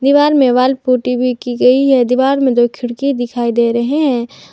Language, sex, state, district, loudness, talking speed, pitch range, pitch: Hindi, female, Jharkhand, Garhwa, -13 LUFS, 210 wpm, 245-270 Hz, 255 Hz